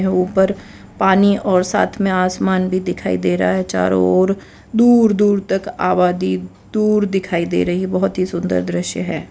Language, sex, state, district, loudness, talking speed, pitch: Hindi, female, Gujarat, Valsad, -17 LUFS, 170 wpm, 185 Hz